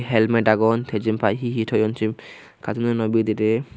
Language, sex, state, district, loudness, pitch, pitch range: Chakma, male, Tripura, Unakoti, -21 LUFS, 110 Hz, 110-115 Hz